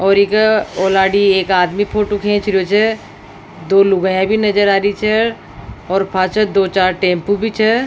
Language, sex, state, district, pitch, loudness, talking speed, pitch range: Rajasthani, female, Rajasthan, Nagaur, 200 Hz, -14 LUFS, 175 wpm, 190-215 Hz